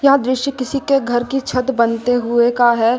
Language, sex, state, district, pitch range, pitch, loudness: Hindi, female, Uttar Pradesh, Lucknow, 240-270 Hz, 255 Hz, -16 LUFS